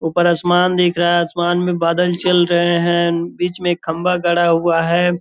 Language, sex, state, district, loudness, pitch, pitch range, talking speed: Hindi, male, Bihar, Purnia, -16 LUFS, 175 Hz, 170-175 Hz, 220 wpm